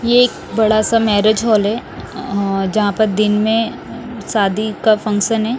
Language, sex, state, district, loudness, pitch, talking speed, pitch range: Hindi, male, Odisha, Nuapada, -16 LUFS, 215 Hz, 180 wpm, 210-225 Hz